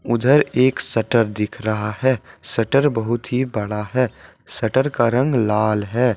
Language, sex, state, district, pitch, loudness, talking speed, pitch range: Hindi, male, Jharkhand, Deoghar, 120 Hz, -19 LUFS, 155 wpm, 110-130 Hz